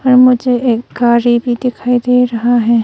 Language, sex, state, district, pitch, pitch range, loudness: Hindi, female, Arunachal Pradesh, Longding, 245 Hz, 240-250 Hz, -12 LUFS